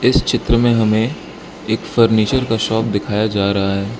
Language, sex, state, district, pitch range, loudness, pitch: Hindi, male, Arunachal Pradesh, Lower Dibang Valley, 100-115 Hz, -16 LUFS, 110 Hz